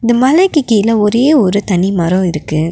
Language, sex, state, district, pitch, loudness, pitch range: Tamil, female, Tamil Nadu, Nilgiris, 210 Hz, -12 LUFS, 180-250 Hz